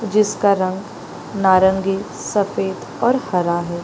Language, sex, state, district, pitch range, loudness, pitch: Hindi, female, Bihar, East Champaran, 185-205 Hz, -18 LUFS, 195 Hz